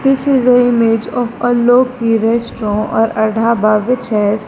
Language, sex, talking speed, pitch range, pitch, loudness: English, female, 175 wpm, 220-245 Hz, 230 Hz, -13 LUFS